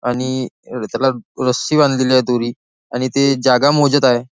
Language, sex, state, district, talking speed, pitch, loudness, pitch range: Marathi, male, Maharashtra, Nagpur, 155 wpm, 130 Hz, -16 LUFS, 125-140 Hz